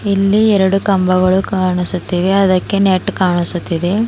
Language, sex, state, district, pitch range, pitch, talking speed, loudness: Kannada, female, Karnataka, Bidar, 180-195 Hz, 190 Hz, 105 wpm, -14 LUFS